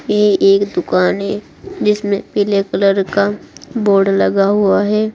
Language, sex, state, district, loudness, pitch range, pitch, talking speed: Hindi, female, Uttar Pradesh, Saharanpur, -14 LUFS, 195-205 Hz, 200 Hz, 140 wpm